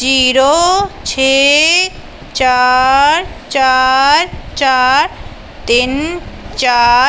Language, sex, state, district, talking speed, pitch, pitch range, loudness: Punjabi, female, Punjab, Pathankot, 60 wpm, 265 Hz, 255-305 Hz, -11 LUFS